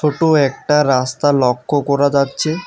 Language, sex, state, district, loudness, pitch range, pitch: Bengali, male, West Bengal, Alipurduar, -15 LUFS, 135-150 Hz, 145 Hz